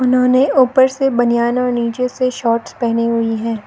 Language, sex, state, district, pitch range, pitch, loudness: Hindi, female, Arunachal Pradesh, Lower Dibang Valley, 230-255 Hz, 245 Hz, -15 LUFS